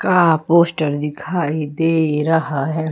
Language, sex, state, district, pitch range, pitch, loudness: Hindi, female, Madhya Pradesh, Umaria, 150-165 Hz, 160 Hz, -17 LUFS